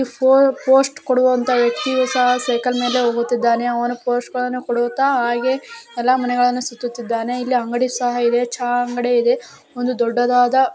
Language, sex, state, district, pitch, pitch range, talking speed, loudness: Kannada, female, Karnataka, Raichur, 245 Hz, 240-255 Hz, 145 wpm, -18 LUFS